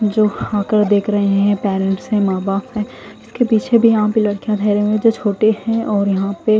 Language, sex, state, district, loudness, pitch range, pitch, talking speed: Hindi, female, Odisha, Khordha, -16 LUFS, 200-220 Hz, 210 Hz, 210 wpm